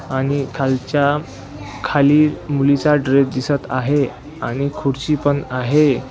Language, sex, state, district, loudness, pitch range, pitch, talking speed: Marathi, male, Maharashtra, Washim, -18 LUFS, 130-145 Hz, 140 Hz, 110 wpm